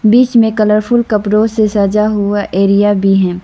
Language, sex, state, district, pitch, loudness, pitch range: Hindi, female, Arunachal Pradesh, Lower Dibang Valley, 210 Hz, -11 LUFS, 200-220 Hz